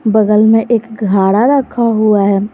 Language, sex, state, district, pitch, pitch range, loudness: Hindi, female, Jharkhand, Garhwa, 215 Hz, 205-230 Hz, -11 LUFS